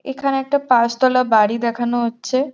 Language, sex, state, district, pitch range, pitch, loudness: Bengali, female, West Bengal, Jhargram, 235-270 Hz, 255 Hz, -17 LUFS